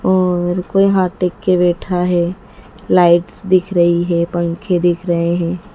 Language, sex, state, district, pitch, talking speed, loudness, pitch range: Hindi, female, Madhya Pradesh, Dhar, 180 Hz, 155 wpm, -15 LUFS, 170-185 Hz